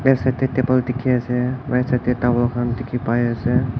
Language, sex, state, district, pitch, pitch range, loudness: Nagamese, male, Nagaland, Kohima, 125 Hz, 120-130 Hz, -20 LUFS